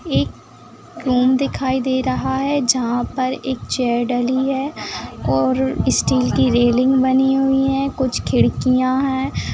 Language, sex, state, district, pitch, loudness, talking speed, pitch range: Hindi, female, Bihar, Madhepura, 260 Hz, -18 LUFS, 140 wpm, 240-265 Hz